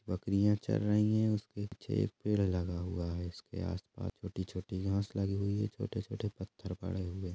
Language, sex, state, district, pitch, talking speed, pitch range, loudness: Hindi, male, Chhattisgarh, Kabirdham, 100 Hz, 190 wpm, 90-105 Hz, -36 LUFS